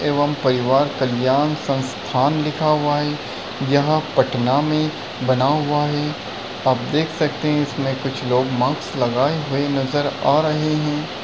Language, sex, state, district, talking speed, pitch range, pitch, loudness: Hindi, male, Uttar Pradesh, Varanasi, 145 wpm, 130-150 Hz, 145 Hz, -20 LUFS